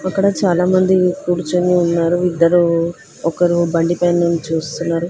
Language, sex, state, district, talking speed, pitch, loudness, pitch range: Telugu, female, Telangana, Hyderabad, 130 wpm, 175 Hz, -16 LUFS, 170-180 Hz